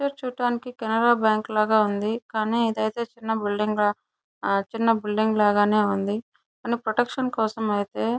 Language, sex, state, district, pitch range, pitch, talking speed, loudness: Telugu, female, Andhra Pradesh, Chittoor, 210-235 Hz, 220 Hz, 145 wpm, -24 LUFS